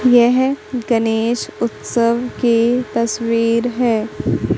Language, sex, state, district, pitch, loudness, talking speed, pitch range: Hindi, female, Madhya Pradesh, Katni, 235 Hz, -17 LUFS, 80 wpm, 225-245 Hz